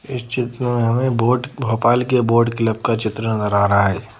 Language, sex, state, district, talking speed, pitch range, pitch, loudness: Hindi, female, Madhya Pradesh, Bhopal, 215 wpm, 110-125 Hz, 115 Hz, -18 LUFS